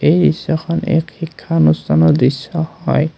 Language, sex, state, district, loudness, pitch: Assamese, male, Assam, Kamrup Metropolitan, -15 LUFS, 155 Hz